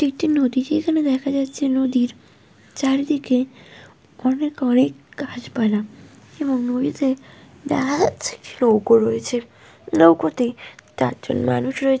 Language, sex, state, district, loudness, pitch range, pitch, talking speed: Bengali, female, West Bengal, Purulia, -20 LUFS, 240-275 Hz, 260 Hz, 125 wpm